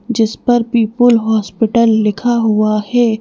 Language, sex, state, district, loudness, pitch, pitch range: Hindi, female, Madhya Pradesh, Bhopal, -13 LUFS, 225 Hz, 215-240 Hz